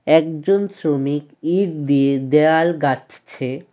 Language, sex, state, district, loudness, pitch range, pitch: Bengali, male, West Bengal, Alipurduar, -18 LUFS, 140-165 Hz, 150 Hz